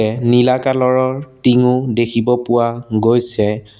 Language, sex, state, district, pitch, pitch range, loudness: Assamese, male, Assam, Sonitpur, 120 Hz, 115-125 Hz, -15 LUFS